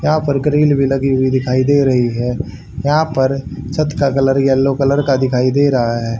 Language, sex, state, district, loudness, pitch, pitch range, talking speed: Hindi, male, Haryana, Rohtak, -15 LUFS, 135 Hz, 130-140 Hz, 215 wpm